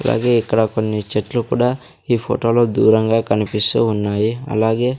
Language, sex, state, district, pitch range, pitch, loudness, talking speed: Telugu, male, Andhra Pradesh, Sri Satya Sai, 105-120 Hz, 115 Hz, -17 LUFS, 130 wpm